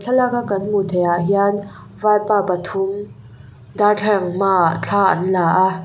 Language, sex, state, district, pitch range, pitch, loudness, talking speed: Mizo, female, Mizoram, Aizawl, 180-205 Hz, 195 Hz, -17 LUFS, 165 wpm